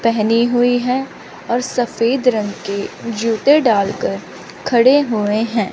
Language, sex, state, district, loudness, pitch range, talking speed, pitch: Hindi, female, Chandigarh, Chandigarh, -16 LUFS, 215-245 Hz, 125 wpm, 235 Hz